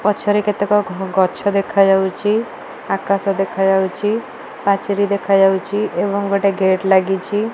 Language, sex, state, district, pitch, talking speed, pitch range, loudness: Odia, female, Odisha, Malkangiri, 200 Hz, 120 wpm, 190-205 Hz, -17 LUFS